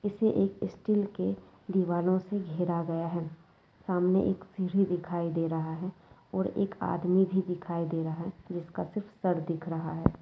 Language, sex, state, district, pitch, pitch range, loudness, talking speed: Hindi, female, West Bengal, Jalpaiguri, 180 Hz, 170-190 Hz, -31 LUFS, 170 wpm